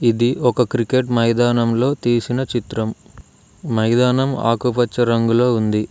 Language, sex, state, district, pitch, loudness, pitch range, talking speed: Telugu, male, Telangana, Mahabubabad, 120 Hz, -18 LUFS, 115-125 Hz, 100 wpm